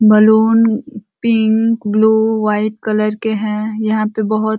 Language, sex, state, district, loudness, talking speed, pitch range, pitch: Hindi, female, Uttar Pradesh, Ghazipur, -14 LUFS, 130 wpm, 215-220 Hz, 220 Hz